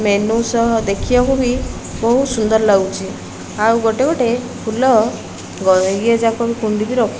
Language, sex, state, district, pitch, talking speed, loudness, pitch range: Odia, female, Odisha, Malkangiri, 225 Hz, 160 wpm, -16 LUFS, 210-240 Hz